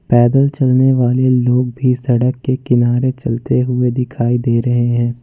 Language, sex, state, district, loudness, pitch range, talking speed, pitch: Hindi, male, Jharkhand, Ranchi, -14 LUFS, 120-130 Hz, 160 wpm, 125 Hz